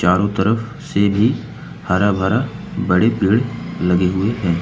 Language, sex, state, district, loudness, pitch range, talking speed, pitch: Hindi, male, Uttar Pradesh, Lucknow, -18 LUFS, 90-115 Hz, 145 wpm, 100 Hz